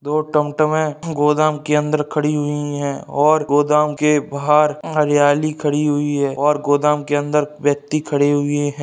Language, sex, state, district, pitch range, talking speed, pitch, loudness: Hindi, male, Bihar, Saharsa, 145-150 Hz, 165 wpm, 150 Hz, -17 LUFS